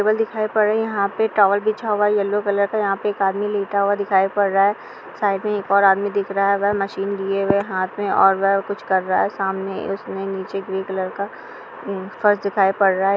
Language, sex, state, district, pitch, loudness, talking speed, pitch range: Hindi, female, Bihar, Kishanganj, 200 Hz, -20 LUFS, 225 wpm, 195-205 Hz